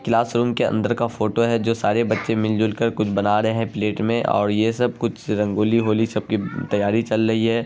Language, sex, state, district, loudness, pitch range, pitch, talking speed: Hindi, male, Bihar, Araria, -21 LUFS, 105-115 Hz, 110 Hz, 240 wpm